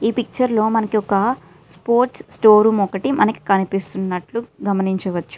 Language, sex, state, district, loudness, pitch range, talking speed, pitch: Telugu, female, Telangana, Karimnagar, -18 LUFS, 190-225 Hz, 120 wpm, 210 Hz